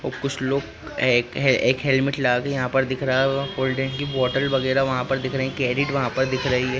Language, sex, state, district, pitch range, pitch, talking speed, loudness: Hindi, male, Maharashtra, Pune, 130-135 Hz, 135 Hz, 230 wpm, -22 LUFS